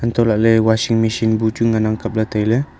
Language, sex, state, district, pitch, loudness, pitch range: Wancho, male, Arunachal Pradesh, Longding, 110 Hz, -17 LUFS, 110-115 Hz